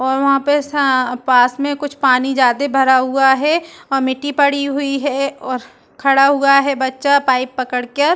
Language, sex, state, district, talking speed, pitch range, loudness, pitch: Hindi, female, Chhattisgarh, Bastar, 190 wpm, 260-285 Hz, -15 LUFS, 275 Hz